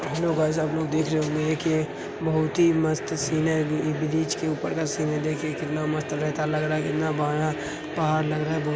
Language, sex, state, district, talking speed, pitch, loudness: Hindi, male, Bihar, Begusarai, 220 wpm, 155 Hz, -25 LUFS